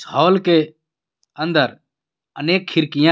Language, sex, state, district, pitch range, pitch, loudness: Hindi, male, Jharkhand, Garhwa, 155-180 Hz, 160 Hz, -18 LUFS